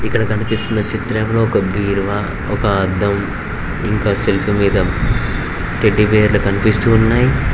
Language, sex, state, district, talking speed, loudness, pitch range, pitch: Telugu, male, Telangana, Mahabubabad, 105 wpm, -16 LUFS, 100-110 Hz, 105 Hz